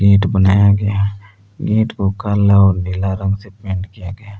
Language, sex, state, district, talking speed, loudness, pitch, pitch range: Hindi, male, Jharkhand, Palamu, 190 wpm, -16 LUFS, 100 Hz, 95-100 Hz